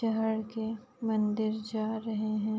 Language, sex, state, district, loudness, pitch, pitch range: Hindi, female, Jharkhand, Sahebganj, -32 LUFS, 220 Hz, 215-220 Hz